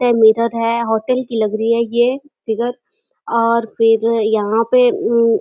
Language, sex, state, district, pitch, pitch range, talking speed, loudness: Hindi, female, Uttar Pradesh, Deoria, 230 Hz, 225-240 Hz, 190 wpm, -16 LUFS